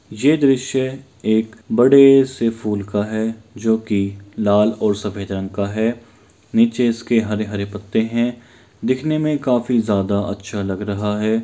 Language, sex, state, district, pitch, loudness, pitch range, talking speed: Maithili, male, Bihar, Kishanganj, 110 Hz, -19 LUFS, 105-120 Hz, 150 wpm